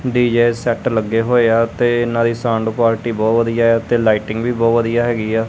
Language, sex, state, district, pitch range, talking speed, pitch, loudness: Punjabi, male, Punjab, Kapurthala, 115-120 Hz, 220 wpm, 115 Hz, -16 LUFS